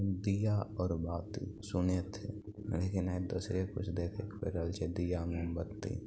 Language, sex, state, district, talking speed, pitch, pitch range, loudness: Maithili, male, Bihar, Begusarai, 140 wpm, 95 Hz, 90-105 Hz, -37 LUFS